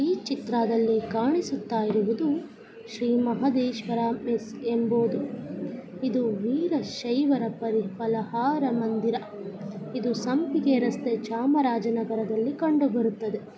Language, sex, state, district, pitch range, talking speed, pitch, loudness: Kannada, female, Karnataka, Chamarajanagar, 225-260 Hz, 70 wpm, 235 Hz, -27 LUFS